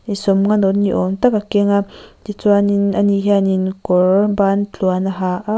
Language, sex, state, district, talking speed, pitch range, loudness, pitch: Mizo, female, Mizoram, Aizawl, 185 wpm, 190-205 Hz, -16 LUFS, 200 Hz